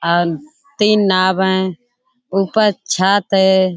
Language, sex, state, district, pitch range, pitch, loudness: Hindi, female, Uttar Pradesh, Budaun, 185-215 Hz, 190 Hz, -15 LUFS